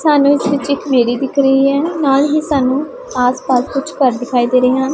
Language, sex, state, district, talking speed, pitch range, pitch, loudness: Punjabi, female, Punjab, Pathankot, 220 wpm, 255-285 Hz, 275 Hz, -14 LUFS